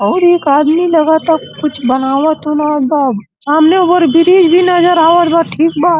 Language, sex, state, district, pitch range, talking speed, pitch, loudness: Bhojpuri, male, Uttar Pradesh, Gorakhpur, 295-345 Hz, 170 wpm, 315 Hz, -10 LUFS